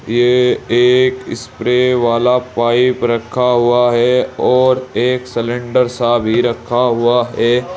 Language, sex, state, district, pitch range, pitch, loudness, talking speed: Hindi, male, Uttar Pradesh, Saharanpur, 120-125 Hz, 120 Hz, -14 LUFS, 125 wpm